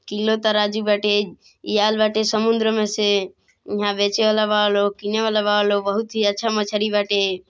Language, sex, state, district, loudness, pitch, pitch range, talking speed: Bhojpuri, female, Bihar, East Champaran, -20 LUFS, 210 Hz, 205-215 Hz, 185 wpm